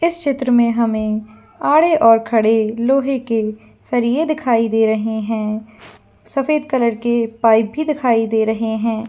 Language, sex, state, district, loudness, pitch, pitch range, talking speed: Hindi, female, Jharkhand, Jamtara, -17 LUFS, 230 Hz, 220-265 Hz, 160 wpm